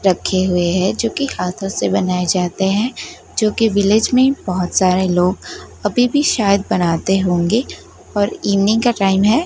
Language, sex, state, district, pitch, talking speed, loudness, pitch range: Hindi, female, Gujarat, Gandhinagar, 195 Hz, 165 wpm, -16 LUFS, 185-225 Hz